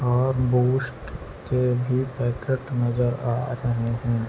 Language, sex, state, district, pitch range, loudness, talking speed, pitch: Hindi, male, Chhattisgarh, Bilaspur, 120-130 Hz, -24 LUFS, 125 wpm, 125 Hz